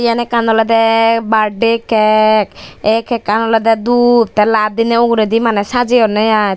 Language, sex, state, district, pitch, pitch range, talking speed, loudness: Chakma, female, Tripura, Dhalai, 225 Hz, 215-230 Hz, 145 wpm, -12 LUFS